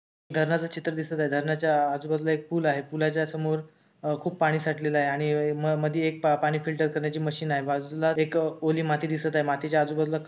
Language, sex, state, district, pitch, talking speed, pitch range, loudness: Marathi, male, Maharashtra, Sindhudurg, 155 Hz, 195 wpm, 150-160 Hz, -27 LUFS